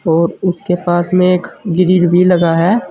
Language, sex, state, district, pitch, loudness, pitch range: Hindi, male, Uttar Pradesh, Saharanpur, 180 Hz, -13 LUFS, 175-185 Hz